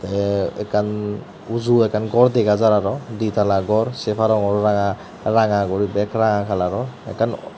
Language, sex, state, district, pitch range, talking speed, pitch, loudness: Chakma, male, Tripura, Dhalai, 100-110 Hz, 140 wpm, 105 Hz, -19 LUFS